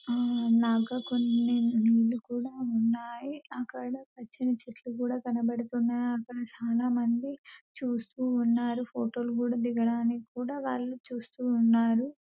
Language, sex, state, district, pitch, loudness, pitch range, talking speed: Telugu, female, Telangana, Nalgonda, 240 Hz, -30 LUFS, 235-250 Hz, 120 wpm